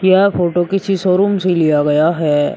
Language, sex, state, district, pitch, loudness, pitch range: Hindi, male, Uttar Pradesh, Shamli, 175 Hz, -14 LUFS, 155-190 Hz